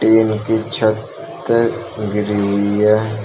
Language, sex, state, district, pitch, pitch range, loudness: Hindi, male, Uttar Pradesh, Shamli, 110 Hz, 105-110 Hz, -17 LUFS